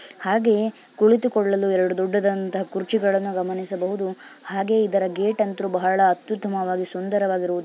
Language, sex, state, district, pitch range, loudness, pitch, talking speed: Kannada, female, Karnataka, Bijapur, 185-210 Hz, -22 LUFS, 195 Hz, 120 wpm